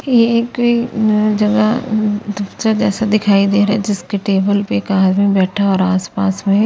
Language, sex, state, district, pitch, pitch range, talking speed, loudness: Hindi, female, Chandigarh, Chandigarh, 205 Hz, 195-215 Hz, 215 wpm, -15 LUFS